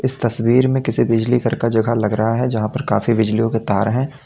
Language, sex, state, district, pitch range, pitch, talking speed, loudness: Hindi, male, Uttar Pradesh, Lalitpur, 110-125 Hz, 115 Hz, 255 wpm, -17 LUFS